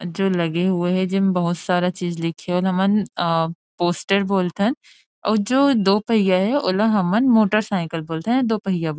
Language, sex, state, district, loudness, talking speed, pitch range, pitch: Chhattisgarhi, female, Chhattisgarh, Rajnandgaon, -20 LUFS, 200 wpm, 175-210 Hz, 190 Hz